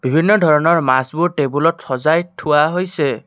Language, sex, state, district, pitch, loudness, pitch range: Assamese, male, Assam, Kamrup Metropolitan, 155 Hz, -16 LUFS, 145-170 Hz